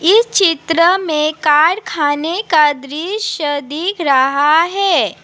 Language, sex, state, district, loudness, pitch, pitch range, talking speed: Hindi, female, Assam, Sonitpur, -14 LUFS, 320 Hz, 295-370 Hz, 105 wpm